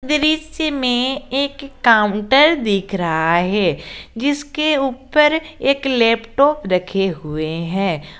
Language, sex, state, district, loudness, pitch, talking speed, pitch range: Hindi, female, Jharkhand, Garhwa, -17 LUFS, 260 Hz, 105 wpm, 195-290 Hz